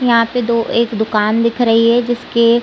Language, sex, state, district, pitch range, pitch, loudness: Hindi, female, Chhattisgarh, Raigarh, 230-240 Hz, 235 Hz, -14 LUFS